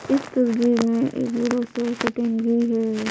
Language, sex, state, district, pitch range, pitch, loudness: Hindi, female, Bihar, Patna, 230-245 Hz, 235 Hz, -22 LUFS